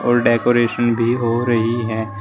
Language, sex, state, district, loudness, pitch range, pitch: Hindi, male, Uttar Pradesh, Shamli, -17 LUFS, 115-120 Hz, 120 Hz